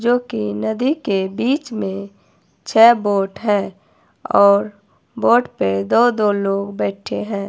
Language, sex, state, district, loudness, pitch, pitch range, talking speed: Hindi, female, Himachal Pradesh, Shimla, -17 LUFS, 205 Hz, 195-230 Hz, 135 wpm